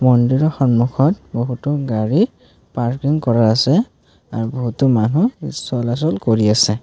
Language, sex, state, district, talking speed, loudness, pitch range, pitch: Assamese, male, Assam, Kamrup Metropolitan, 115 wpm, -17 LUFS, 115-145 Hz, 125 Hz